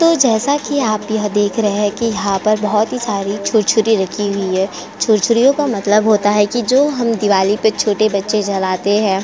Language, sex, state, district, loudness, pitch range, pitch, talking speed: Hindi, female, Uttar Pradesh, Jyotiba Phule Nagar, -15 LUFS, 200-225 Hz, 210 Hz, 210 wpm